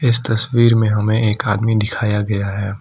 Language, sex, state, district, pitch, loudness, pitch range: Hindi, male, Assam, Kamrup Metropolitan, 110 Hz, -17 LUFS, 105-115 Hz